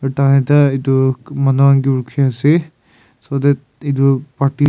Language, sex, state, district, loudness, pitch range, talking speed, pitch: Nagamese, male, Nagaland, Kohima, -15 LUFS, 135-140 Hz, 165 wpm, 135 Hz